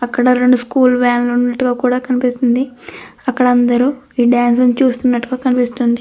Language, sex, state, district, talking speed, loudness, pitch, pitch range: Telugu, female, Andhra Pradesh, Krishna, 140 wpm, -14 LUFS, 250 Hz, 245-255 Hz